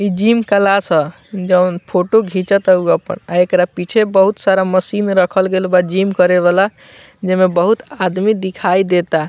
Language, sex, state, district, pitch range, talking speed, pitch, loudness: Bhojpuri, male, Bihar, Muzaffarpur, 180-200 Hz, 175 wpm, 185 Hz, -14 LUFS